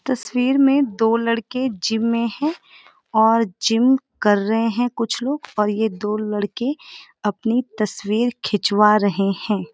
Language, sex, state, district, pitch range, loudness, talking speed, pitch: Hindi, female, Uttarakhand, Uttarkashi, 210-250 Hz, -20 LUFS, 140 wpm, 225 Hz